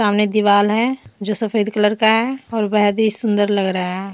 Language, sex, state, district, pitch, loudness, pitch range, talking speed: Hindi, female, Jharkhand, Deoghar, 210 Hz, -17 LUFS, 205-220 Hz, 230 wpm